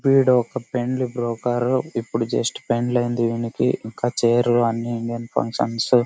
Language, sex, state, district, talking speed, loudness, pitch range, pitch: Telugu, male, Karnataka, Bellary, 100 wpm, -22 LUFS, 115-125 Hz, 120 Hz